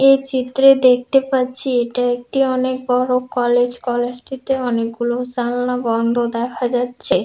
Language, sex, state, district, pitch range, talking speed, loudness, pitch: Bengali, female, West Bengal, Dakshin Dinajpur, 245-260 Hz, 130 wpm, -18 LUFS, 250 Hz